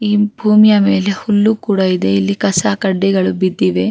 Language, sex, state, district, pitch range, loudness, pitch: Kannada, female, Karnataka, Raichur, 185-210 Hz, -13 LUFS, 195 Hz